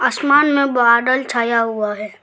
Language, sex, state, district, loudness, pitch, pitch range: Hindi, female, Arunachal Pradesh, Lower Dibang Valley, -15 LUFS, 240 Hz, 230-270 Hz